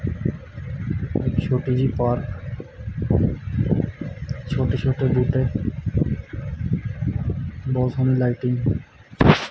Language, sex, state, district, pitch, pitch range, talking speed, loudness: Punjabi, male, Punjab, Kapurthala, 125 Hz, 120-130 Hz, 65 wpm, -23 LUFS